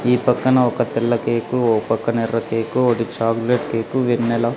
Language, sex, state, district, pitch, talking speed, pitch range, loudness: Telugu, male, Andhra Pradesh, Sri Satya Sai, 115 Hz, 185 wpm, 115-125 Hz, -19 LUFS